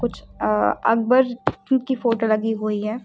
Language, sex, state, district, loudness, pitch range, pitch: Hindi, female, Uttar Pradesh, Lucknow, -21 LUFS, 215-245 Hz, 225 Hz